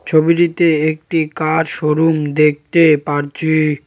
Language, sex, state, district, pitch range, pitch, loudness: Bengali, male, West Bengal, Cooch Behar, 150-160 Hz, 155 Hz, -15 LUFS